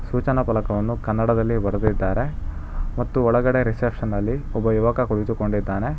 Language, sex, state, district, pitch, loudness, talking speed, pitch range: Kannada, male, Karnataka, Bangalore, 115 Hz, -22 LUFS, 110 wpm, 105-120 Hz